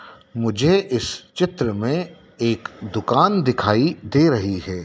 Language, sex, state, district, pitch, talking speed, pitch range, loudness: Hindi, male, Madhya Pradesh, Dhar, 115 Hz, 125 wpm, 100-155 Hz, -20 LUFS